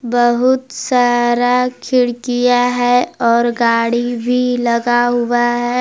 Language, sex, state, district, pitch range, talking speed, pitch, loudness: Hindi, female, Jharkhand, Palamu, 240-245 Hz, 105 wpm, 245 Hz, -14 LUFS